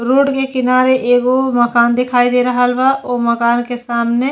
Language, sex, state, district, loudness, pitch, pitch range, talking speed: Bhojpuri, female, Uttar Pradesh, Deoria, -14 LUFS, 245 Hz, 240-255 Hz, 195 wpm